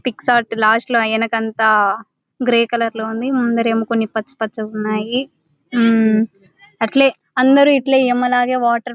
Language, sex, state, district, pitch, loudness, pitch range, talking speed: Telugu, female, Andhra Pradesh, Anantapur, 230 Hz, -16 LUFS, 220-250 Hz, 135 wpm